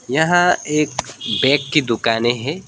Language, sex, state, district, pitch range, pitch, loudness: Hindi, male, West Bengal, Alipurduar, 120-160 Hz, 145 Hz, -17 LUFS